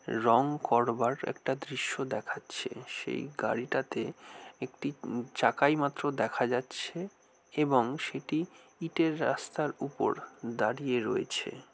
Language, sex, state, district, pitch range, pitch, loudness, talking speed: Bengali, male, West Bengal, North 24 Parganas, 120-155 Hz, 135 Hz, -32 LUFS, 100 wpm